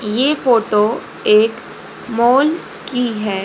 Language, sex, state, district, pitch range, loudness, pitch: Hindi, female, Haryana, Rohtak, 215-255 Hz, -16 LUFS, 230 Hz